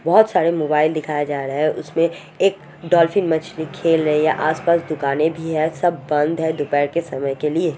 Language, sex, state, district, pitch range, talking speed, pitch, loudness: Hindi, female, Odisha, Sambalpur, 150-170 Hz, 190 wpm, 160 Hz, -19 LUFS